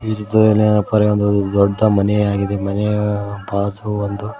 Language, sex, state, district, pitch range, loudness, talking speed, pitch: Kannada, male, Karnataka, Koppal, 100-105 Hz, -17 LUFS, 80 wpm, 105 Hz